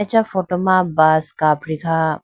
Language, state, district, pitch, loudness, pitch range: Idu Mishmi, Arunachal Pradesh, Lower Dibang Valley, 165 Hz, -17 LUFS, 155-185 Hz